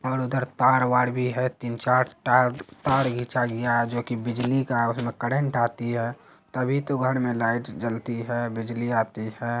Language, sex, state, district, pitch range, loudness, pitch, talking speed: Hindi, male, Bihar, Araria, 120-130 Hz, -25 LUFS, 120 Hz, 195 wpm